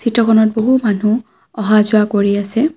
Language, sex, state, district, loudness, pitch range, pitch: Assamese, female, Assam, Kamrup Metropolitan, -14 LUFS, 210-230 Hz, 220 Hz